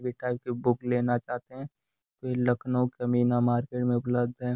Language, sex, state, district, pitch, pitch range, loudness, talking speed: Hindi, male, Uttar Pradesh, Gorakhpur, 125 Hz, 120-125 Hz, -28 LUFS, 195 wpm